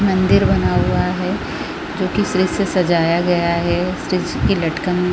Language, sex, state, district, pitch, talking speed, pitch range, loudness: Hindi, female, Chhattisgarh, Raigarh, 180 Hz, 165 wpm, 170-185 Hz, -18 LUFS